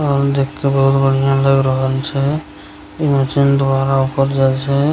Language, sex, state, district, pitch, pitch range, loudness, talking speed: Maithili, male, Bihar, Begusarai, 135 Hz, 135-140 Hz, -15 LUFS, 170 wpm